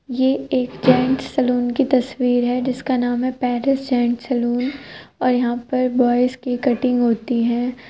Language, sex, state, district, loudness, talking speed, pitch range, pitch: Hindi, male, Uttar Pradesh, Jyotiba Phule Nagar, -19 LUFS, 160 wpm, 245-255 Hz, 250 Hz